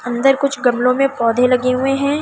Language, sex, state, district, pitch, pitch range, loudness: Hindi, female, Delhi, New Delhi, 255 Hz, 250-275 Hz, -16 LUFS